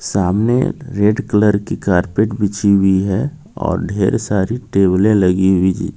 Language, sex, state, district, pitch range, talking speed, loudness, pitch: Hindi, male, Jharkhand, Ranchi, 95-105 Hz, 140 wpm, -16 LUFS, 100 Hz